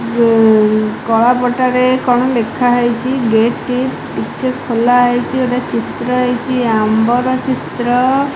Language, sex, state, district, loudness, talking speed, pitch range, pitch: Odia, female, Odisha, Khordha, -14 LUFS, 130 wpm, 230-255 Hz, 245 Hz